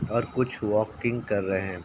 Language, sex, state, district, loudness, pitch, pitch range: Hindi, male, Uttar Pradesh, Ghazipur, -27 LUFS, 110 Hz, 100-120 Hz